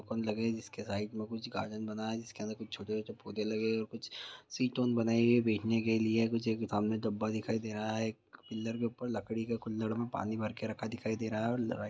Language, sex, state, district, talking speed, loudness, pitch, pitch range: Hindi, male, West Bengal, Purulia, 230 wpm, -35 LUFS, 110 Hz, 110-115 Hz